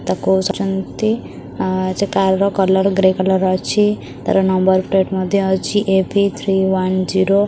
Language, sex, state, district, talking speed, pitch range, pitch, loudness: Odia, female, Odisha, Khordha, 160 wpm, 190-195 Hz, 190 Hz, -16 LUFS